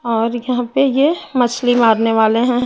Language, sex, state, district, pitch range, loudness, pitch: Hindi, female, Chhattisgarh, Raipur, 230-250 Hz, -15 LUFS, 245 Hz